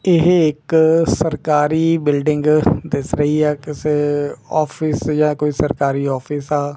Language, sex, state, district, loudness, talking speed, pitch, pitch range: Punjabi, male, Punjab, Kapurthala, -17 LUFS, 125 wpm, 150 Hz, 145-155 Hz